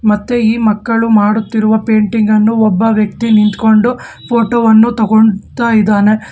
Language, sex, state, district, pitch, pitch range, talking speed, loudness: Kannada, male, Karnataka, Bangalore, 220 Hz, 215-225 Hz, 115 wpm, -11 LUFS